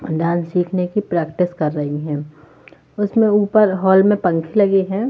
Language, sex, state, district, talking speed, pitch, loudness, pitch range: Hindi, female, Haryana, Jhajjar, 165 wpm, 180 Hz, -17 LUFS, 160-205 Hz